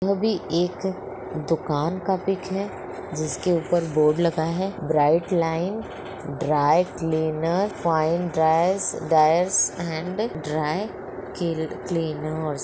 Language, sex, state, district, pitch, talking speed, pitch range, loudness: Hindi, female, Bihar, Muzaffarpur, 165 Hz, 120 wpm, 155-185 Hz, -24 LUFS